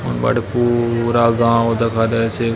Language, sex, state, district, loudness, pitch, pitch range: Chhattisgarhi, male, Chhattisgarh, Bastar, -16 LUFS, 115 Hz, 115-120 Hz